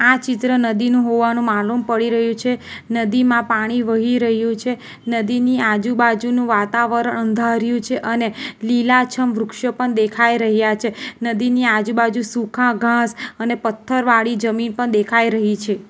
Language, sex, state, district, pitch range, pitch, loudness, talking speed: Gujarati, female, Gujarat, Valsad, 225-245 Hz, 235 Hz, -18 LUFS, 140 wpm